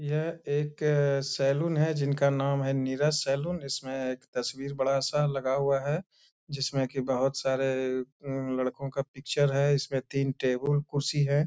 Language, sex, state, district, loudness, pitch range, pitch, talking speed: Hindi, male, Bihar, Bhagalpur, -29 LUFS, 135-145 Hz, 140 Hz, 175 wpm